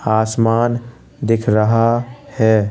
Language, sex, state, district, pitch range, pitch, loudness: Hindi, male, Uttar Pradesh, Jalaun, 110-120 Hz, 115 Hz, -16 LUFS